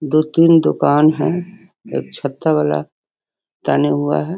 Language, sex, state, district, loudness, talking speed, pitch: Hindi, female, Bihar, Sitamarhi, -16 LUFS, 125 wpm, 150 Hz